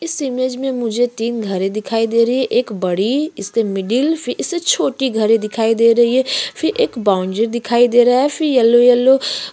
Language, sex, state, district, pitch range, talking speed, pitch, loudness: Hindi, female, Uttarakhand, Tehri Garhwal, 225-260 Hz, 200 wpm, 240 Hz, -16 LUFS